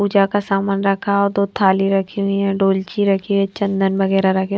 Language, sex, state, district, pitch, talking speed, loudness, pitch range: Hindi, female, Himachal Pradesh, Shimla, 195 Hz, 225 wpm, -17 LUFS, 195-200 Hz